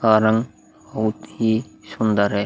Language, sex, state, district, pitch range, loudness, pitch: Hindi, male, Bihar, Vaishali, 105-110 Hz, -21 LUFS, 110 Hz